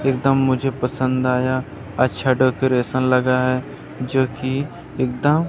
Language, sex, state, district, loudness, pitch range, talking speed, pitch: Hindi, male, Madhya Pradesh, Umaria, -20 LUFS, 130-135 Hz, 120 wpm, 130 Hz